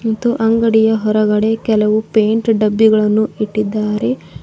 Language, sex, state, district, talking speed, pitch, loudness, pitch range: Kannada, female, Karnataka, Bidar, 95 wpm, 220 Hz, -14 LUFS, 215-225 Hz